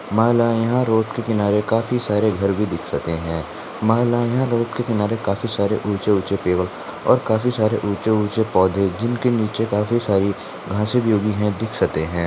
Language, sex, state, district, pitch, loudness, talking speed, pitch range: Hindi, male, Maharashtra, Sindhudurg, 105 Hz, -20 LUFS, 180 wpm, 100-115 Hz